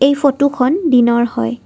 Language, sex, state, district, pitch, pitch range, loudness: Assamese, female, Assam, Kamrup Metropolitan, 255 Hz, 235-285 Hz, -14 LUFS